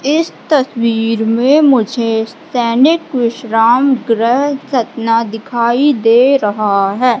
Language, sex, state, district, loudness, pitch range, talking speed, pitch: Hindi, female, Madhya Pradesh, Katni, -13 LUFS, 225-270 Hz, 100 wpm, 240 Hz